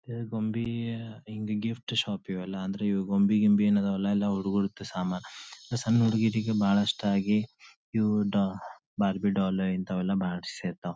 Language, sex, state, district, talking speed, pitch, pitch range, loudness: Kannada, male, Karnataka, Dharwad, 115 wpm, 100 Hz, 95-110 Hz, -28 LUFS